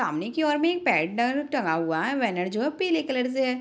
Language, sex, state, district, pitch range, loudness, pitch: Hindi, female, Bihar, Madhepura, 230-295 Hz, -25 LUFS, 260 Hz